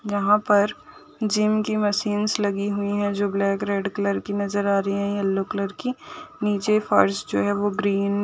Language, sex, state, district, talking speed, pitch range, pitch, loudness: Hindi, female, Uttar Pradesh, Jalaun, 205 wpm, 200-210 Hz, 205 Hz, -23 LUFS